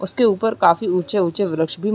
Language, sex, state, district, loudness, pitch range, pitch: Hindi, female, Uttarakhand, Uttarkashi, -19 LUFS, 175-215 Hz, 195 Hz